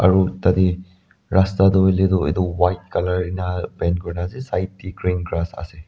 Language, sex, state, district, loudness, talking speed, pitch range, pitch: Nagamese, male, Nagaland, Dimapur, -20 LUFS, 195 wpm, 90-95 Hz, 90 Hz